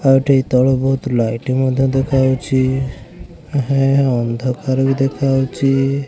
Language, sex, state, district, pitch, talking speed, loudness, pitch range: Odia, male, Odisha, Khordha, 135 Hz, 120 wpm, -16 LUFS, 130-135 Hz